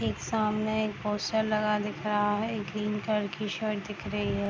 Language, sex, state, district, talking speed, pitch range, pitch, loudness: Hindi, female, Bihar, East Champaran, 215 wpm, 205-215 Hz, 210 Hz, -30 LUFS